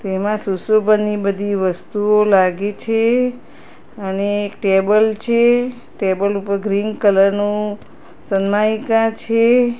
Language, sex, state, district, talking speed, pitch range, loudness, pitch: Gujarati, female, Gujarat, Gandhinagar, 100 wpm, 200-225 Hz, -17 LUFS, 210 Hz